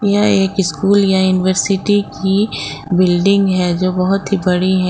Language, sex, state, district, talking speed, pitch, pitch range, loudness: Hindi, female, Jharkhand, Ranchi, 145 wpm, 190 Hz, 180-195 Hz, -14 LUFS